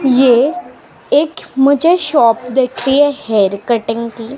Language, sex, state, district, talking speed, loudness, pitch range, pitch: Hindi, female, Maharashtra, Mumbai Suburban, 150 wpm, -13 LUFS, 235-285 Hz, 260 Hz